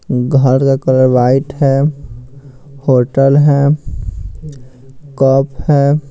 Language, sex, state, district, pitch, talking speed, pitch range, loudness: Hindi, male, Bihar, Patna, 135 Hz, 90 wpm, 130-140 Hz, -12 LUFS